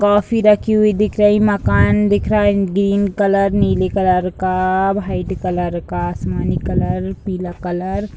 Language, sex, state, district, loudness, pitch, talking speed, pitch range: Hindi, female, Bihar, Sitamarhi, -16 LUFS, 190 Hz, 170 wpm, 180-205 Hz